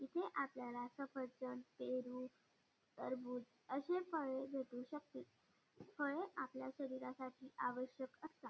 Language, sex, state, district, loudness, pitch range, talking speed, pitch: Marathi, female, Maharashtra, Dhule, -47 LUFS, 255-275 Hz, 100 wpm, 260 Hz